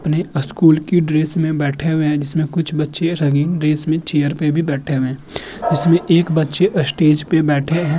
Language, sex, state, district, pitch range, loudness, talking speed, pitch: Hindi, male, Uttar Pradesh, Muzaffarnagar, 150-165 Hz, -16 LUFS, 195 wpm, 155 Hz